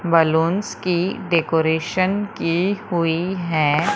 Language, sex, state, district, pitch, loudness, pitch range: Hindi, female, Madhya Pradesh, Umaria, 170 Hz, -20 LUFS, 165-190 Hz